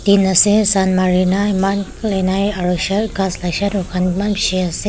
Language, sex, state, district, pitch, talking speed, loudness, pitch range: Nagamese, female, Nagaland, Kohima, 195 Hz, 160 wpm, -16 LUFS, 185-205 Hz